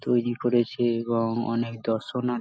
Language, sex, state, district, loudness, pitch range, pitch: Bengali, male, West Bengal, Malda, -26 LUFS, 115-120 Hz, 120 Hz